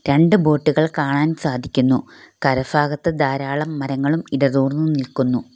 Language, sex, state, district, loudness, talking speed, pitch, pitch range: Malayalam, female, Kerala, Kollam, -19 LUFS, 120 wpm, 145 Hz, 135-155 Hz